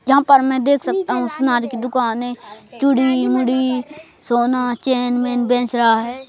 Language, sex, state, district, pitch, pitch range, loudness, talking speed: Hindi, male, Madhya Pradesh, Bhopal, 250 Hz, 245-265 Hz, -17 LUFS, 170 wpm